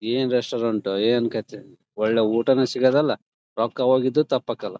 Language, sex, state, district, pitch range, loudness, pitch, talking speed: Kannada, male, Karnataka, Bellary, 110-130 Hz, -22 LUFS, 120 Hz, 140 wpm